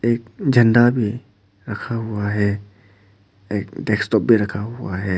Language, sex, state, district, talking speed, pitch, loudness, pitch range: Hindi, male, Arunachal Pradesh, Papum Pare, 140 wpm, 105 Hz, -20 LUFS, 100-115 Hz